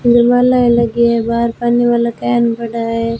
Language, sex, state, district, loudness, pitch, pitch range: Hindi, female, Rajasthan, Jaisalmer, -13 LUFS, 235 Hz, 230-240 Hz